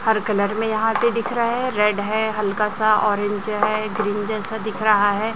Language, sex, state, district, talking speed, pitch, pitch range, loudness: Hindi, male, Chhattisgarh, Raipur, 210 wpm, 215 Hz, 210-220 Hz, -20 LUFS